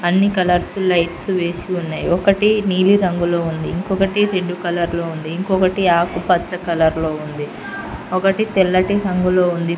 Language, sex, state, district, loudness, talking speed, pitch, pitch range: Telugu, female, Telangana, Mahabubabad, -18 LUFS, 145 wpm, 180 Hz, 170-190 Hz